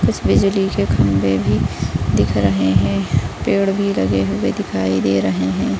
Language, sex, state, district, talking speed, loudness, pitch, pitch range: Hindi, female, Bihar, Bhagalpur, 165 wpm, -17 LUFS, 100 Hz, 95-105 Hz